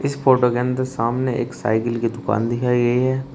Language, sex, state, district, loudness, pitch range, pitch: Hindi, male, Uttar Pradesh, Shamli, -20 LUFS, 120-130 Hz, 125 Hz